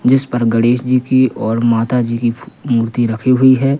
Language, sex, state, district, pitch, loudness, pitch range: Hindi, male, Madhya Pradesh, Katni, 120 Hz, -14 LUFS, 115-130 Hz